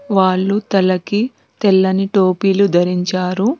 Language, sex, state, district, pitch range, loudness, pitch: Telugu, female, Telangana, Mahabubabad, 185-205 Hz, -15 LUFS, 195 Hz